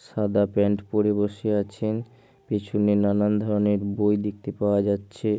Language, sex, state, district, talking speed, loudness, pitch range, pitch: Bengali, male, West Bengal, Jhargram, 135 wpm, -24 LUFS, 100-105 Hz, 105 Hz